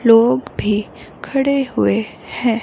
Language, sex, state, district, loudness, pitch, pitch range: Hindi, female, Himachal Pradesh, Shimla, -17 LUFS, 230 Hz, 210-255 Hz